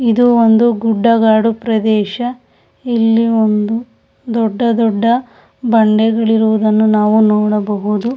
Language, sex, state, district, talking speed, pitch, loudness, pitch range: Kannada, female, Karnataka, Shimoga, 90 wpm, 225 Hz, -13 LUFS, 215-235 Hz